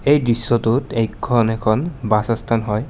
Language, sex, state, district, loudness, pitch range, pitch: Assamese, male, Assam, Kamrup Metropolitan, -19 LUFS, 110-125 Hz, 115 Hz